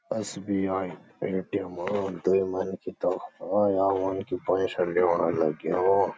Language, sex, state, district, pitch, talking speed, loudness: Garhwali, male, Uttarakhand, Uttarkashi, 95 Hz, 105 wpm, -27 LUFS